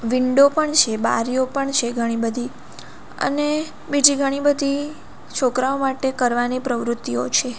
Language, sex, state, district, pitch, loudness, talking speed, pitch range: Gujarati, female, Gujarat, Valsad, 260 Hz, -20 LUFS, 135 wpm, 240-280 Hz